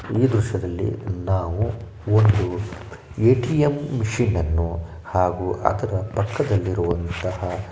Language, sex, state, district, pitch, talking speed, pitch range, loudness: Kannada, male, Karnataka, Shimoga, 100 Hz, 85 wpm, 90-110 Hz, -22 LUFS